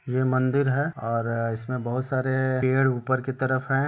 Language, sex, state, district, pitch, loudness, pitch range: Hindi, male, Jharkhand, Sahebganj, 130 Hz, -25 LUFS, 125-135 Hz